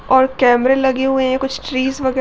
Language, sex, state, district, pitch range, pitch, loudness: Hindi, female, Uttarakhand, Tehri Garhwal, 260-265 Hz, 265 Hz, -16 LUFS